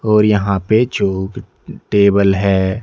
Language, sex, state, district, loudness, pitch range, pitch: Hindi, male, Odisha, Nuapada, -14 LUFS, 95-105 Hz, 100 Hz